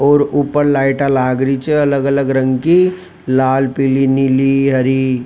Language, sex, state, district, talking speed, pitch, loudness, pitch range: Rajasthani, male, Rajasthan, Nagaur, 170 wpm, 135 Hz, -14 LUFS, 130-145 Hz